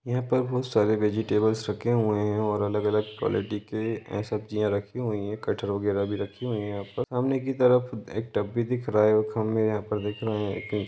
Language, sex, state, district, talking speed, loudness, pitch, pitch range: Hindi, male, Jharkhand, Jamtara, 175 wpm, -27 LUFS, 105 Hz, 105-120 Hz